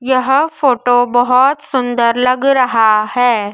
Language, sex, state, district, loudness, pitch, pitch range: Hindi, female, Madhya Pradesh, Dhar, -13 LUFS, 250 Hz, 240-265 Hz